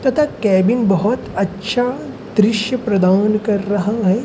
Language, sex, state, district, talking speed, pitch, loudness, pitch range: Hindi, male, Madhya Pradesh, Umaria, 125 wpm, 210 Hz, -17 LUFS, 195-240 Hz